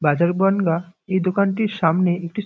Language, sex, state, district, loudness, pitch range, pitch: Bengali, male, West Bengal, North 24 Parganas, -20 LUFS, 170-195 Hz, 185 Hz